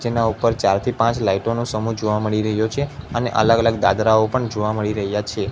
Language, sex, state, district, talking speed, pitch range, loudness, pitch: Gujarati, male, Gujarat, Gandhinagar, 230 wpm, 105-115 Hz, -19 LUFS, 110 Hz